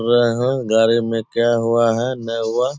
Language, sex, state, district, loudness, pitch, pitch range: Hindi, male, Bihar, Purnia, -18 LUFS, 115 Hz, 115-125 Hz